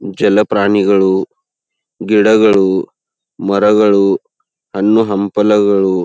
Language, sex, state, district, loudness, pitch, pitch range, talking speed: Kannada, male, Karnataka, Belgaum, -12 LUFS, 100 Hz, 100-105 Hz, 50 wpm